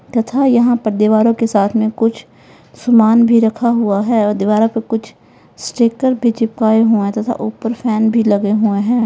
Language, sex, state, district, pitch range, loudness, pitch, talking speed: Hindi, female, Uttar Pradesh, Lalitpur, 215-235 Hz, -14 LUFS, 225 Hz, 190 wpm